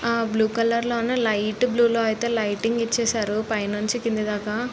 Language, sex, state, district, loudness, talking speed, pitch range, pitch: Telugu, female, Andhra Pradesh, Srikakulam, -23 LUFS, 165 wpm, 215-235 Hz, 230 Hz